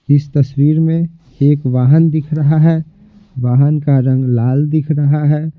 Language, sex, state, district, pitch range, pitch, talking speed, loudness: Hindi, male, Bihar, Patna, 140-160 Hz, 150 Hz, 160 wpm, -13 LUFS